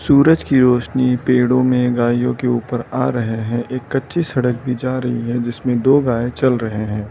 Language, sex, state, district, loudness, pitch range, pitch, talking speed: Hindi, male, Arunachal Pradesh, Lower Dibang Valley, -17 LUFS, 120-130 Hz, 125 Hz, 200 wpm